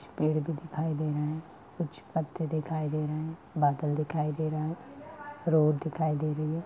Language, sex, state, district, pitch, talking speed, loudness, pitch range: Hindi, female, Bihar, Madhepura, 155 Hz, 205 wpm, -31 LUFS, 150-160 Hz